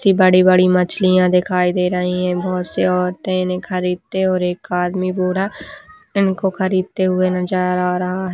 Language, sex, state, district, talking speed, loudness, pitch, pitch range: Hindi, female, Chhattisgarh, Raigarh, 165 wpm, -17 LUFS, 185 Hz, 180-190 Hz